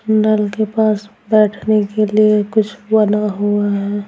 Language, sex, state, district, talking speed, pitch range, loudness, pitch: Hindi, female, Bihar, Patna, 145 wpm, 205-215 Hz, -15 LUFS, 210 Hz